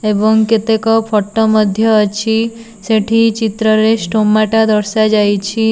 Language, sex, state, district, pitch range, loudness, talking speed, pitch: Odia, female, Odisha, Nuapada, 215-225 Hz, -13 LUFS, 105 wpm, 220 Hz